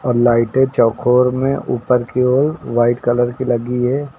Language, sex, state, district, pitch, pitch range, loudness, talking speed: Hindi, male, Uttar Pradesh, Lucknow, 125 Hz, 120-130 Hz, -16 LUFS, 155 wpm